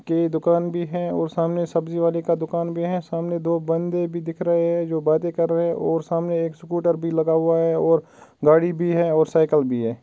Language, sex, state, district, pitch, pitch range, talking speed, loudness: Hindi, male, Uttar Pradesh, Ghazipur, 165 Hz, 165-170 Hz, 235 wpm, -21 LUFS